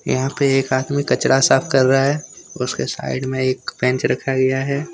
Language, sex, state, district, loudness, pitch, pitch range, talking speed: Hindi, male, Jharkhand, Deoghar, -18 LUFS, 135 Hz, 130-140 Hz, 205 wpm